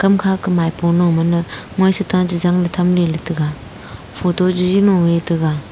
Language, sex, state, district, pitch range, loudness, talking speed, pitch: Wancho, female, Arunachal Pradesh, Longding, 160-180 Hz, -16 LUFS, 170 wpm, 175 Hz